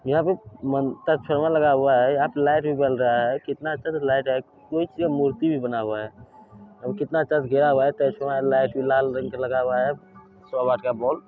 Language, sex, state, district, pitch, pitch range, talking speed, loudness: Maithili, male, Bihar, Supaul, 135 Hz, 130-150 Hz, 235 wpm, -23 LUFS